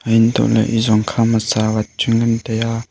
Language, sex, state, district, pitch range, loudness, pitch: Wancho, male, Arunachal Pradesh, Longding, 110-115 Hz, -16 LUFS, 115 Hz